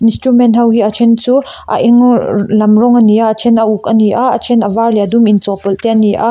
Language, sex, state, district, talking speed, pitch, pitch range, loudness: Mizo, female, Mizoram, Aizawl, 285 wpm, 225 Hz, 215-240 Hz, -10 LUFS